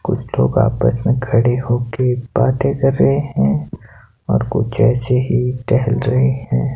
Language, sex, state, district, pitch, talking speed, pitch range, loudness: Hindi, male, Himachal Pradesh, Shimla, 125 Hz, 160 wpm, 120-135 Hz, -16 LUFS